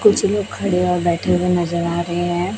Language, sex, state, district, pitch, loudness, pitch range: Hindi, male, Chhattisgarh, Raipur, 180 Hz, -19 LUFS, 175-195 Hz